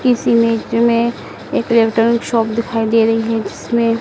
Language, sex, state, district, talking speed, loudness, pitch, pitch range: Hindi, female, Madhya Pradesh, Dhar, 165 wpm, -15 LUFS, 230 Hz, 225-235 Hz